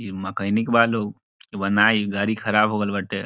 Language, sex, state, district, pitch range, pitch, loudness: Bhojpuri, male, Bihar, Saran, 100-110 Hz, 105 Hz, -21 LUFS